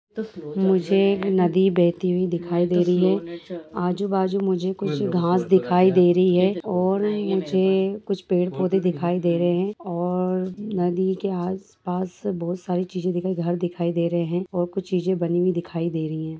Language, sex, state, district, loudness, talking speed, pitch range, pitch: Hindi, female, Jharkhand, Jamtara, -22 LUFS, 170 wpm, 175-190 Hz, 180 Hz